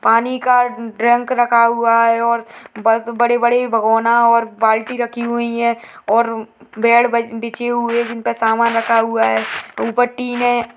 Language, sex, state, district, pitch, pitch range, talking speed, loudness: Hindi, female, Uttarakhand, Tehri Garhwal, 235 Hz, 230-240 Hz, 155 wpm, -16 LUFS